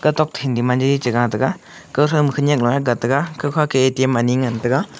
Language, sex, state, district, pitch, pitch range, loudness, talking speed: Wancho, male, Arunachal Pradesh, Longding, 130 Hz, 125-145 Hz, -18 LUFS, 215 wpm